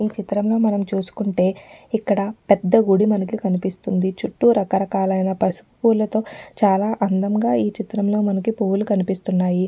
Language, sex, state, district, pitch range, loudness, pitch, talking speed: Telugu, female, Telangana, Nalgonda, 190-215 Hz, -20 LUFS, 200 Hz, 105 wpm